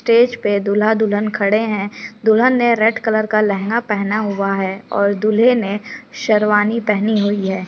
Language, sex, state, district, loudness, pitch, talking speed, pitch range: Hindi, female, Chhattisgarh, Sukma, -16 LUFS, 215 Hz, 170 wpm, 205-225 Hz